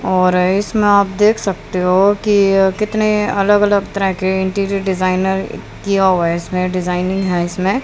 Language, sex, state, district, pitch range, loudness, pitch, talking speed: Hindi, female, Haryana, Rohtak, 185-205 Hz, -15 LUFS, 195 Hz, 160 wpm